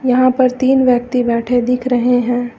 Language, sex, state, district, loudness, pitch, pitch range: Hindi, female, Uttar Pradesh, Lucknow, -14 LUFS, 250 Hz, 245-255 Hz